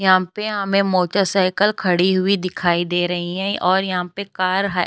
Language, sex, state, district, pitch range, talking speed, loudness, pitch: Hindi, female, Uttar Pradesh, Jyotiba Phule Nagar, 180-195 Hz, 185 wpm, -19 LUFS, 185 Hz